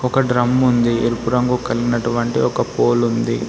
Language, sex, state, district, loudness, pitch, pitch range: Telugu, male, Telangana, Komaram Bheem, -17 LUFS, 120 Hz, 120-125 Hz